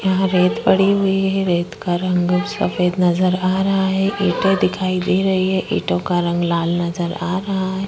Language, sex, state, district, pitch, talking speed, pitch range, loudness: Hindi, female, Chhattisgarh, Korba, 185 Hz, 205 wpm, 180-195 Hz, -18 LUFS